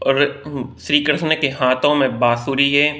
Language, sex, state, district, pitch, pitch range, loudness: Hindi, male, Bihar, East Champaran, 140 Hz, 135-145 Hz, -17 LUFS